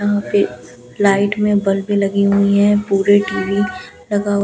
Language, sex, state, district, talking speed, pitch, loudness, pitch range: Hindi, female, Delhi, New Delhi, 175 wpm, 200 Hz, -16 LUFS, 195-205 Hz